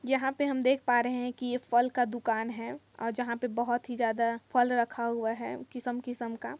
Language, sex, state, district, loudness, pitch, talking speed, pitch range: Hindi, female, Chhattisgarh, Kabirdham, -31 LUFS, 245 Hz, 225 wpm, 235-250 Hz